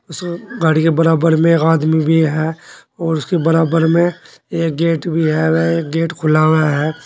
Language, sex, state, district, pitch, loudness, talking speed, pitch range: Hindi, male, Uttar Pradesh, Saharanpur, 165 Hz, -15 LUFS, 185 wpm, 160-165 Hz